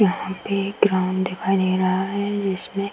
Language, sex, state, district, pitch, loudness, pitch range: Hindi, female, Uttar Pradesh, Hamirpur, 190 Hz, -22 LUFS, 185-200 Hz